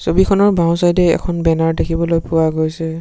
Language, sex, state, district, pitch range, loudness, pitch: Assamese, male, Assam, Sonitpur, 165-175 Hz, -15 LUFS, 165 Hz